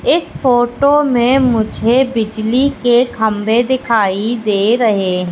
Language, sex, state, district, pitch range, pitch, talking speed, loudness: Hindi, female, Madhya Pradesh, Katni, 220-255 Hz, 240 Hz, 115 wpm, -14 LUFS